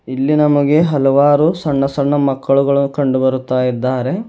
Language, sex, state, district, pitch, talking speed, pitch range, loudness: Kannada, male, Karnataka, Bidar, 140 Hz, 100 wpm, 130-145 Hz, -14 LUFS